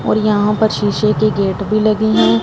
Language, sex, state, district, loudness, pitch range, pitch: Hindi, female, Punjab, Fazilka, -14 LUFS, 200-215 Hz, 210 Hz